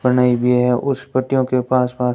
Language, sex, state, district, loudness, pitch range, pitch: Hindi, male, Rajasthan, Bikaner, -17 LUFS, 125-130 Hz, 125 Hz